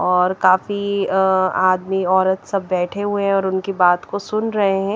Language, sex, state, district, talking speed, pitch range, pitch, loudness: Hindi, female, Chandigarh, Chandigarh, 180 wpm, 185-200 Hz, 190 Hz, -18 LUFS